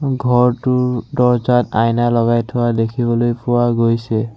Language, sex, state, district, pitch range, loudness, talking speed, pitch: Assamese, male, Assam, Sonitpur, 115-125 Hz, -16 LUFS, 110 wpm, 120 Hz